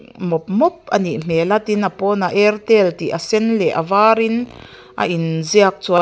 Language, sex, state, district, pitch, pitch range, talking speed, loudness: Mizo, female, Mizoram, Aizawl, 205 Hz, 175-220 Hz, 180 wpm, -16 LUFS